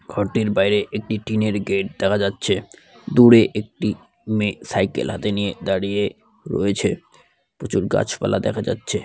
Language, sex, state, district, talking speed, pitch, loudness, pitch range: Bengali, male, West Bengal, Dakshin Dinajpur, 120 wpm, 105 Hz, -20 LUFS, 100-110 Hz